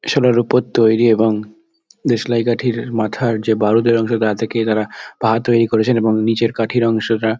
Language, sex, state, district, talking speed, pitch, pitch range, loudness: Bengali, male, West Bengal, Dakshin Dinajpur, 180 wpm, 115 Hz, 110-120 Hz, -16 LUFS